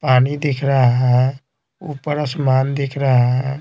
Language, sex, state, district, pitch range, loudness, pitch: Hindi, male, Bihar, Patna, 130-145 Hz, -17 LUFS, 135 Hz